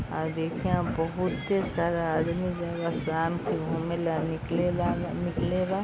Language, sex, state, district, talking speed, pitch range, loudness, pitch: Bhojpuri, female, Bihar, Gopalganj, 145 wpm, 160-180 Hz, -29 LUFS, 170 Hz